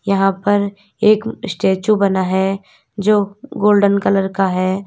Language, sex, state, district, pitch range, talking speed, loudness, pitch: Hindi, female, Uttar Pradesh, Lalitpur, 195-205 Hz, 135 wpm, -16 LUFS, 200 Hz